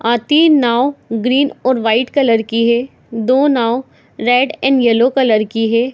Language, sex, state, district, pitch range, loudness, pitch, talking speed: Hindi, female, Jharkhand, Jamtara, 230-265 Hz, -14 LUFS, 245 Hz, 170 wpm